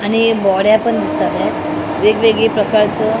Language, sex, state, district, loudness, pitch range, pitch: Marathi, female, Maharashtra, Mumbai Suburban, -14 LUFS, 210-225 Hz, 220 Hz